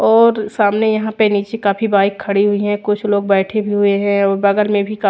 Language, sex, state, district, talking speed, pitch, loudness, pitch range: Hindi, female, Odisha, Khordha, 245 wpm, 205 Hz, -15 LUFS, 200-215 Hz